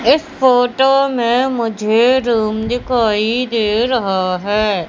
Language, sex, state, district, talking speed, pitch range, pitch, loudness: Hindi, female, Madhya Pradesh, Katni, 110 wpm, 215-255 Hz, 235 Hz, -15 LUFS